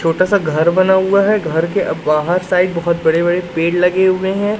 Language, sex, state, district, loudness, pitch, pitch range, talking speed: Hindi, male, Madhya Pradesh, Katni, -15 LUFS, 180 Hz, 165-190 Hz, 210 wpm